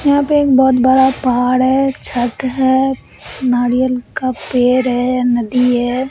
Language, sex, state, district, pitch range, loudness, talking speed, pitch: Hindi, female, Bihar, Katihar, 245-265 Hz, -14 LUFS, 145 wpm, 255 Hz